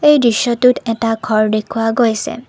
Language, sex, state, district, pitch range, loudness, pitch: Assamese, female, Assam, Kamrup Metropolitan, 220-245 Hz, -15 LUFS, 230 Hz